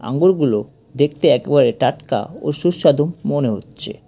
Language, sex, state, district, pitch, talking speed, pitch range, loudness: Bengali, male, West Bengal, Cooch Behar, 145 Hz, 120 wpm, 135-165 Hz, -18 LUFS